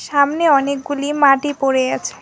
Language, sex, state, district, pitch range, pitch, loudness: Bengali, female, West Bengal, Alipurduar, 275-290 Hz, 285 Hz, -16 LUFS